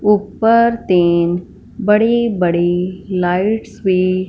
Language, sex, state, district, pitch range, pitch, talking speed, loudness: Hindi, female, Punjab, Fazilka, 180-215 Hz, 185 Hz, 85 wpm, -15 LUFS